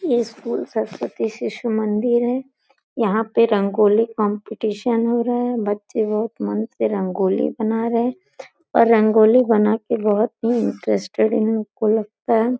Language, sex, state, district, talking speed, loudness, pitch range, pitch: Hindi, female, Uttar Pradesh, Gorakhpur, 150 wpm, -20 LUFS, 215-235 Hz, 225 Hz